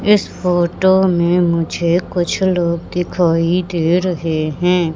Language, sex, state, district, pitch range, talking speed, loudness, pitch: Hindi, female, Madhya Pradesh, Katni, 170-180 Hz, 120 wpm, -16 LUFS, 175 Hz